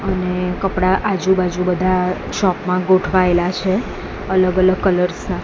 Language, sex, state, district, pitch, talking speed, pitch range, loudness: Gujarati, female, Gujarat, Gandhinagar, 185 Hz, 145 wpm, 180-190 Hz, -17 LUFS